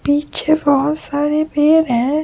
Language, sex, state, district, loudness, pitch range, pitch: Hindi, female, Bihar, Supaul, -16 LUFS, 285-310 Hz, 295 Hz